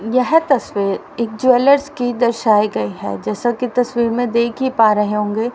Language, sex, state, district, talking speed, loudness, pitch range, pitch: Hindi, female, Haryana, Rohtak, 185 wpm, -17 LUFS, 210-250 Hz, 235 Hz